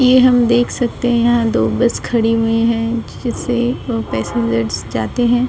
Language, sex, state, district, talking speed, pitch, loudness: Hindi, female, Uttar Pradesh, Budaun, 165 wpm, 230 Hz, -16 LUFS